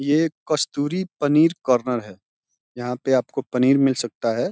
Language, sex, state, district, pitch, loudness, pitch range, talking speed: Hindi, male, Uttar Pradesh, Deoria, 135 Hz, -21 LUFS, 125-150 Hz, 160 wpm